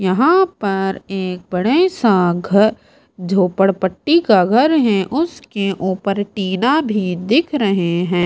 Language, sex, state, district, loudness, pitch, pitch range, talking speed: Hindi, female, Bihar, Kaimur, -16 LUFS, 200 Hz, 185-265 Hz, 125 wpm